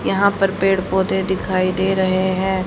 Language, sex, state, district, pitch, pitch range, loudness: Hindi, female, Haryana, Charkhi Dadri, 190 Hz, 185-195 Hz, -18 LUFS